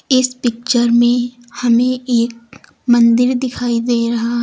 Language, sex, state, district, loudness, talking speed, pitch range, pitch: Hindi, female, Uttar Pradesh, Lucknow, -15 LUFS, 120 wpm, 235-245 Hz, 240 Hz